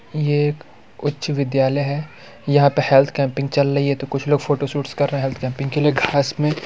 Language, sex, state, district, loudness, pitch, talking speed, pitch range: Hindi, male, Bihar, Muzaffarpur, -19 LUFS, 140 Hz, 235 wpm, 140-145 Hz